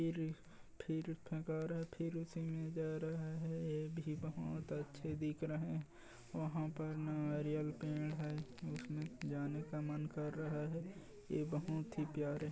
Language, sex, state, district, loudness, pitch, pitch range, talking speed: Hindi, male, Chhattisgarh, Bilaspur, -44 LUFS, 155 Hz, 150-160 Hz, 135 wpm